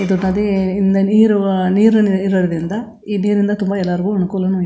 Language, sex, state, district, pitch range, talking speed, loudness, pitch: Kannada, female, Karnataka, Chamarajanagar, 190-205 Hz, 155 wpm, -15 LUFS, 195 Hz